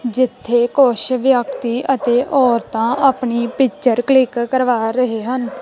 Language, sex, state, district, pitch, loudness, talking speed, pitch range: Punjabi, female, Punjab, Kapurthala, 250 Hz, -16 LUFS, 120 wpm, 240-260 Hz